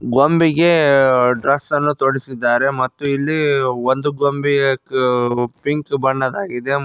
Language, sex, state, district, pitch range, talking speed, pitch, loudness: Kannada, male, Karnataka, Koppal, 130-145 Hz, 105 wpm, 135 Hz, -17 LUFS